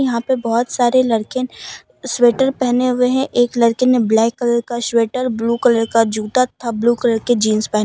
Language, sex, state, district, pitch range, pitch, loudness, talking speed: Hindi, female, Jharkhand, Deoghar, 230-255 Hz, 240 Hz, -16 LUFS, 200 wpm